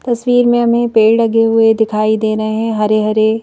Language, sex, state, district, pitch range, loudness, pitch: Hindi, female, Madhya Pradesh, Bhopal, 215-230 Hz, -12 LUFS, 225 Hz